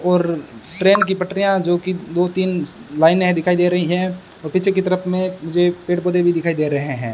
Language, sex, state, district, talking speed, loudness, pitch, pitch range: Hindi, male, Rajasthan, Bikaner, 220 wpm, -18 LUFS, 180 Hz, 170-185 Hz